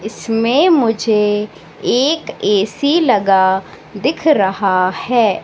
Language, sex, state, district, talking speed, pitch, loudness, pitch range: Hindi, female, Madhya Pradesh, Katni, 90 wpm, 215 Hz, -15 LUFS, 195-265 Hz